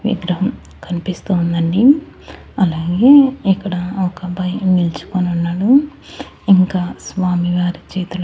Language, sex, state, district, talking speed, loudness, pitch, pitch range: Telugu, female, Andhra Pradesh, Annamaya, 95 wpm, -16 LUFS, 185 Hz, 175-195 Hz